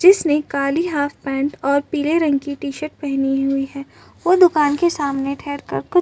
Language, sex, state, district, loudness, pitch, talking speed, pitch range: Hindi, female, Maharashtra, Chandrapur, -19 LUFS, 285 Hz, 190 wpm, 275-305 Hz